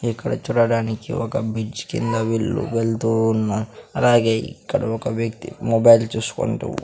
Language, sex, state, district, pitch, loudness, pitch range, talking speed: Telugu, male, Andhra Pradesh, Sri Satya Sai, 115 Hz, -21 LUFS, 110-115 Hz, 125 wpm